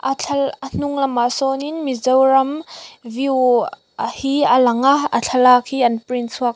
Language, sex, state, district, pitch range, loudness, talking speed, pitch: Mizo, female, Mizoram, Aizawl, 245-275 Hz, -17 LUFS, 175 wpm, 265 Hz